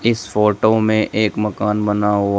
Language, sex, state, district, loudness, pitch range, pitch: Hindi, male, Uttar Pradesh, Shamli, -17 LUFS, 105-110 Hz, 105 Hz